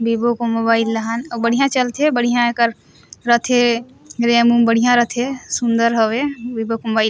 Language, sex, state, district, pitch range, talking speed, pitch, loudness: Surgujia, female, Chhattisgarh, Sarguja, 230-245 Hz, 170 wpm, 235 Hz, -17 LUFS